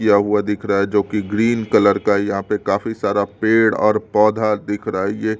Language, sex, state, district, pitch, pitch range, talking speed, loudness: Hindi, male, Delhi, New Delhi, 105 Hz, 100-110 Hz, 235 wpm, -18 LUFS